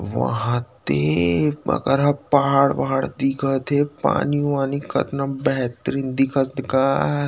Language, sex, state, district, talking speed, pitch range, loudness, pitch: Chhattisgarhi, male, Chhattisgarh, Rajnandgaon, 100 wpm, 130-140 Hz, -20 LUFS, 135 Hz